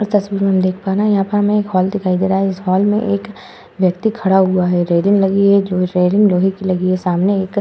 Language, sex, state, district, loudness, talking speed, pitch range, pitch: Hindi, female, Uttar Pradesh, Hamirpur, -15 LUFS, 290 wpm, 185-200 Hz, 195 Hz